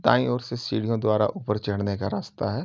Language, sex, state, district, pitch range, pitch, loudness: Hindi, male, Uttar Pradesh, Jyotiba Phule Nagar, 100-115 Hz, 105 Hz, -26 LUFS